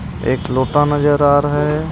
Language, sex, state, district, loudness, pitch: Hindi, male, Jharkhand, Ranchi, -15 LUFS, 145 Hz